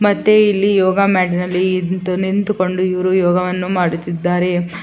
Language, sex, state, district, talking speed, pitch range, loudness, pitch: Kannada, female, Karnataka, Chamarajanagar, 125 wpm, 180-190 Hz, -16 LUFS, 185 Hz